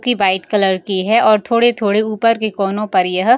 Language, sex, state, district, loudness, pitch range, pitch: Hindi, female, Bihar, Samastipur, -15 LUFS, 195-230 Hz, 210 Hz